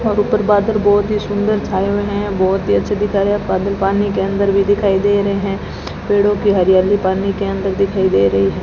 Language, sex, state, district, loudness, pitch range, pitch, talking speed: Hindi, female, Rajasthan, Bikaner, -15 LUFS, 195-205 Hz, 200 Hz, 230 wpm